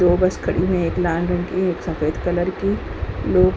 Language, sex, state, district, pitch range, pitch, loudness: Hindi, female, Uttar Pradesh, Hamirpur, 170-185 Hz, 175 Hz, -21 LUFS